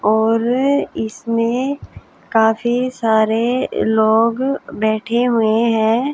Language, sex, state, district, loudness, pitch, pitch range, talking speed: Hindi, female, Haryana, Jhajjar, -17 LUFS, 230 Hz, 220-245 Hz, 80 wpm